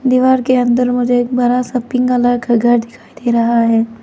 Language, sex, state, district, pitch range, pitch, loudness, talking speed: Hindi, female, Arunachal Pradesh, Lower Dibang Valley, 235-250 Hz, 245 Hz, -14 LUFS, 225 wpm